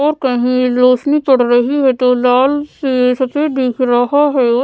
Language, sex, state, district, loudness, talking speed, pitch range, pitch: Hindi, female, Odisha, Sambalpur, -13 LUFS, 170 wpm, 250-285 Hz, 255 Hz